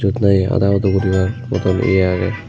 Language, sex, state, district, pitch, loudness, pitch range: Chakma, male, Tripura, Unakoti, 100 Hz, -16 LUFS, 95-110 Hz